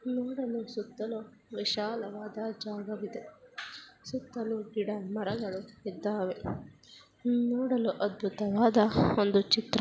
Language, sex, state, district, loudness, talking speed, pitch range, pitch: Kannada, female, Karnataka, Dakshina Kannada, -32 LUFS, 65 wpm, 210-235 Hz, 215 Hz